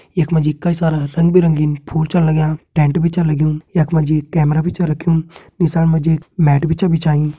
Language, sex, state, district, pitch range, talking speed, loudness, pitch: Garhwali, male, Uttarakhand, Tehri Garhwal, 155-170 Hz, 235 wpm, -16 LUFS, 160 Hz